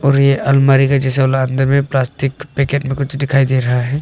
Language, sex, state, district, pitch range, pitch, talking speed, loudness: Hindi, male, Arunachal Pradesh, Longding, 135-140 Hz, 135 Hz, 225 wpm, -14 LUFS